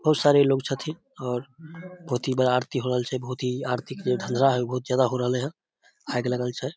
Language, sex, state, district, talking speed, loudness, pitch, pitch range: Maithili, male, Bihar, Samastipur, 230 wpm, -25 LUFS, 130 Hz, 125-140 Hz